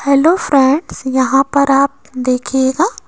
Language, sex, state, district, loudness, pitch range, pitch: Hindi, female, Rajasthan, Jaipur, -14 LUFS, 260-280 Hz, 275 Hz